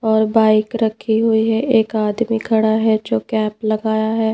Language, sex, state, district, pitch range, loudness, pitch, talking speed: Hindi, female, Madhya Pradesh, Bhopal, 215-225 Hz, -17 LUFS, 220 Hz, 180 wpm